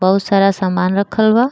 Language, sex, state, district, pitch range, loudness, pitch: Bhojpuri, female, Uttar Pradesh, Gorakhpur, 185-205 Hz, -15 LUFS, 195 Hz